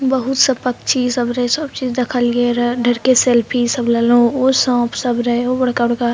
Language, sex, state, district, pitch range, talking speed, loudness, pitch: Maithili, female, Bihar, Purnia, 240-255 Hz, 185 wpm, -15 LUFS, 245 Hz